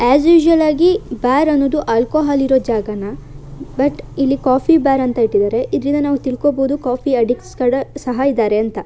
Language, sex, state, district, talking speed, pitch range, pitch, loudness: Kannada, female, Karnataka, Shimoga, 150 wpm, 240-290 Hz, 265 Hz, -15 LUFS